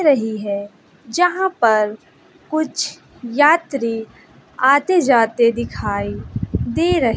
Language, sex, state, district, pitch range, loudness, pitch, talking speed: Hindi, female, Bihar, West Champaran, 210-310 Hz, -18 LUFS, 235 Hz, 90 wpm